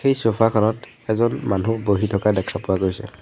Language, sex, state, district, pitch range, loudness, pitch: Assamese, male, Assam, Sonitpur, 100-115 Hz, -21 LUFS, 105 Hz